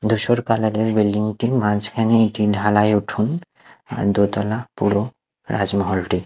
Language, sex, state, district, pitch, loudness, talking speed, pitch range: Bengali, male, Odisha, Nuapada, 105 Hz, -19 LUFS, 125 wpm, 100-115 Hz